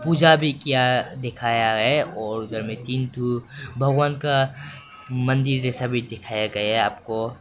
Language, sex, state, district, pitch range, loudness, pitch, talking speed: Hindi, male, Nagaland, Kohima, 115-140 Hz, -22 LUFS, 125 Hz, 155 wpm